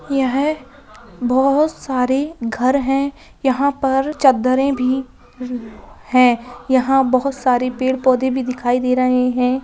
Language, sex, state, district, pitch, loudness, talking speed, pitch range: Hindi, female, Bihar, Lakhisarai, 260 Hz, -17 LUFS, 120 wpm, 250-270 Hz